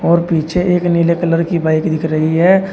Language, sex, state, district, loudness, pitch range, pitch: Hindi, male, Uttar Pradesh, Shamli, -14 LUFS, 160-175 Hz, 170 Hz